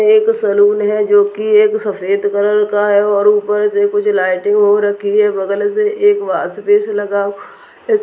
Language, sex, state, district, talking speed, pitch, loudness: Hindi, male, Rajasthan, Nagaur, 185 wpm, 210 Hz, -13 LUFS